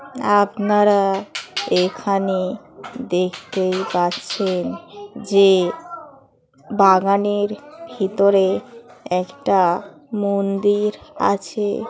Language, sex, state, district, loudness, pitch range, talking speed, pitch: Bengali, female, West Bengal, Jhargram, -19 LUFS, 190-215 Hz, 55 wpm, 200 Hz